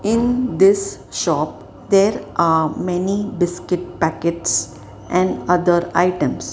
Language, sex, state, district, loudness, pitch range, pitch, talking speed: English, female, Maharashtra, Mumbai Suburban, -18 LUFS, 165-195 Hz, 180 Hz, 100 wpm